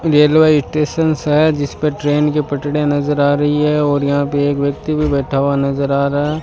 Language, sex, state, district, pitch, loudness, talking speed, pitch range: Hindi, male, Rajasthan, Bikaner, 145 Hz, -15 LUFS, 215 wpm, 145-150 Hz